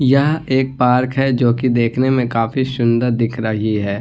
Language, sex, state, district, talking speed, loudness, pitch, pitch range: Hindi, male, Bihar, Gaya, 195 wpm, -16 LUFS, 125 Hz, 115-130 Hz